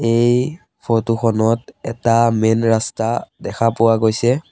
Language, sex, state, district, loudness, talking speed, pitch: Assamese, male, Assam, Sonitpur, -17 LUFS, 120 wpm, 115 Hz